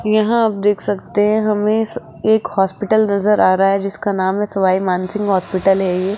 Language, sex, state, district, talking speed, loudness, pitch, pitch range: Hindi, female, Rajasthan, Jaipur, 205 wpm, -16 LUFS, 205 Hz, 190-215 Hz